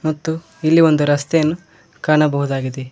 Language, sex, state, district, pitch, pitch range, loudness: Kannada, male, Karnataka, Koppal, 155 Hz, 145-160 Hz, -17 LUFS